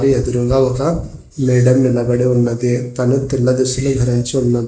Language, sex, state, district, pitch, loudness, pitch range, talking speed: Telugu, male, Telangana, Hyderabad, 125 Hz, -15 LUFS, 125-130 Hz, 130 wpm